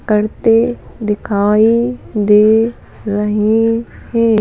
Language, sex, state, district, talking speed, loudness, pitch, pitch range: Hindi, female, Madhya Pradesh, Bhopal, 70 wpm, -14 LUFS, 220 Hz, 210-230 Hz